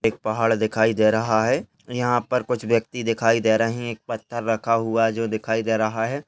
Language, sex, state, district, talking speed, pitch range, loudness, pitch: Hindi, male, Rajasthan, Churu, 230 wpm, 110-120 Hz, -22 LUFS, 115 Hz